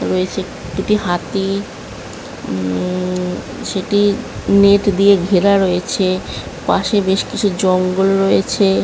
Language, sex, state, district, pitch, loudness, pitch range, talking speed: Bengali, female, West Bengal, Kolkata, 195 Hz, -16 LUFS, 185-200 Hz, 100 wpm